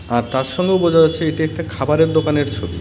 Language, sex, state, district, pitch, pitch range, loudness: Bengali, male, West Bengal, Cooch Behar, 150 Hz, 120-160 Hz, -17 LUFS